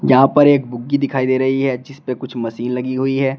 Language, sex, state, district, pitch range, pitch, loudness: Hindi, male, Uttar Pradesh, Shamli, 125-135 Hz, 130 Hz, -17 LUFS